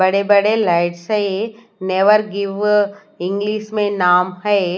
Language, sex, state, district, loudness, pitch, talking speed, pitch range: Hindi, female, Odisha, Nuapada, -17 LUFS, 200 Hz, 125 wpm, 185-210 Hz